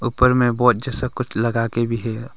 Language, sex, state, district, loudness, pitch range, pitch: Hindi, male, Arunachal Pradesh, Longding, -19 LUFS, 115-125 Hz, 120 Hz